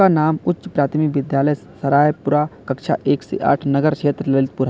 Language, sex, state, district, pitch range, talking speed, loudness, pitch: Hindi, male, Uttar Pradesh, Lalitpur, 140-155 Hz, 155 wpm, -19 LUFS, 145 Hz